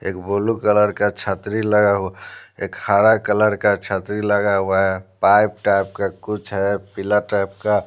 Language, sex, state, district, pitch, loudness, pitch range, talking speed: Hindi, male, Bihar, Patna, 100 Hz, -19 LUFS, 95-105 Hz, 175 wpm